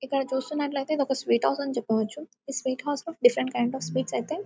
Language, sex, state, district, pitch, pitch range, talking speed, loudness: Telugu, female, Telangana, Karimnagar, 275 Hz, 255-295 Hz, 200 wpm, -27 LUFS